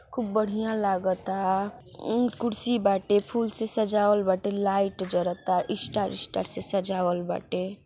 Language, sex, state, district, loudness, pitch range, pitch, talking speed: Bhojpuri, female, Uttar Pradesh, Ghazipur, -26 LUFS, 190-220 Hz, 200 Hz, 130 wpm